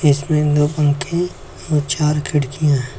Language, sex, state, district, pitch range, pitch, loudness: Hindi, male, Uttar Pradesh, Lucknow, 145-150 Hz, 150 Hz, -18 LUFS